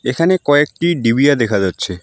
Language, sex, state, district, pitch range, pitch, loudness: Bengali, male, West Bengal, Alipurduar, 110-160 Hz, 140 Hz, -15 LUFS